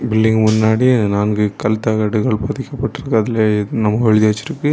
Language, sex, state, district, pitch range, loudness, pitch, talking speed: Tamil, male, Tamil Nadu, Kanyakumari, 110-125 Hz, -16 LUFS, 110 Hz, 140 wpm